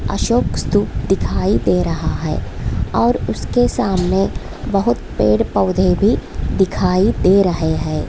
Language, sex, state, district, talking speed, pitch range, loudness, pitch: Hindi, female, Bihar, Muzaffarpur, 120 wpm, 160-195 Hz, -17 LUFS, 185 Hz